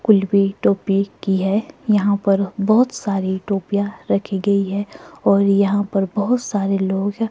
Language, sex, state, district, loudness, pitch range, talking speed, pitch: Hindi, female, Himachal Pradesh, Shimla, -19 LUFS, 195-205 Hz, 150 wpm, 200 Hz